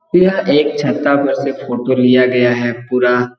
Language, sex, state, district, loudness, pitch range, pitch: Hindi, male, Bihar, Jahanabad, -14 LUFS, 125-140 Hz, 125 Hz